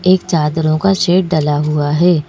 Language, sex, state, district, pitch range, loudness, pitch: Hindi, female, Madhya Pradesh, Bhopal, 150-180 Hz, -14 LUFS, 160 Hz